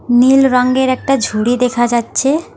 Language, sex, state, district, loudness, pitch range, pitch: Bengali, female, West Bengal, Alipurduar, -13 LUFS, 240-265 Hz, 250 Hz